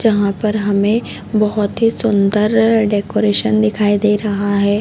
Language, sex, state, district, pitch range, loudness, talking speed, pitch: Hindi, female, Chhattisgarh, Raigarh, 205-220 Hz, -15 LUFS, 135 wpm, 210 Hz